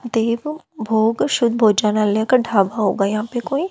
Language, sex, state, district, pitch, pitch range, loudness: Hindi, female, Haryana, Jhajjar, 225 Hz, 215-240 Hz, -18 LUFS